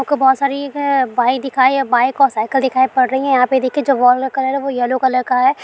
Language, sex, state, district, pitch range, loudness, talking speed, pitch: Hindi, female, Bihar, Araria, 255-275 Hz, -15 LUFS, 300 wpm, 265 Hz